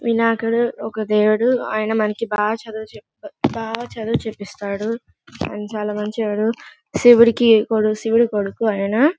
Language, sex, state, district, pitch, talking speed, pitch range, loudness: Telugu, female, Andhra Pradesh, Guntur, 220 Hz, 110 wpm, 210-230 Hz, -19 LUFS